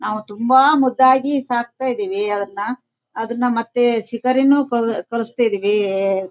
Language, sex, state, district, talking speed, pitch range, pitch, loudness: Kannada, female, Karnataka, Shimoga, 55 wpm, 210-255 Hz, 235 Hz, -18 LUFS